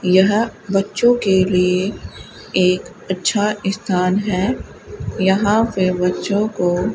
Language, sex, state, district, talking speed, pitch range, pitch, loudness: Hindi, female, Rajasthan, Bikaner, 105 wpm, 185-210 Hz, 195 Hz, -18 LUFS